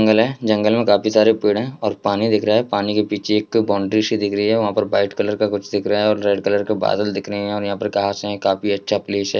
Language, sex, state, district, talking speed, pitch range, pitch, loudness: Hindi, male, Bihar, Jahanabad, 305 wpm, 100-110 Hz, 105 Hz, -19 LUFS